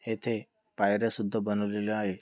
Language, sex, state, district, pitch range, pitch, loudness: Marathi, male, Maharashtra, Dhule, 105-115 Hz, 105 Hz, -30 LUFS